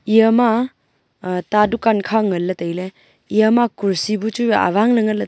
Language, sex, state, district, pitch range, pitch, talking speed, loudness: Wancho, female, Arunachal Pradesh, Longding, 195-225 Hz, 215 Hz, 215 wpm, -17 LUFS